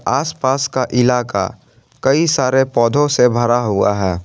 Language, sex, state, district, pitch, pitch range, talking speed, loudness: Hindi, male, Jharkhand, Garhwa, 125 Hz, 115-135 Hz, 140 wpm, -16 LUFS